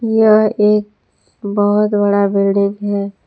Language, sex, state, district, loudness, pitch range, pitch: Hindi, female, Jharkhand, Palamu, -14 LUFS, 200-210 Hz, 205 Hz